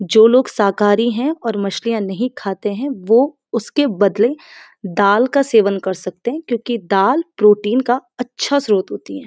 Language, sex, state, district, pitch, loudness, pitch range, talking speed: Hindi, female, Uttarakhand, Uttarkashi, 230 Hz, -16 LUFS, 200-255 Hz, 170 wpm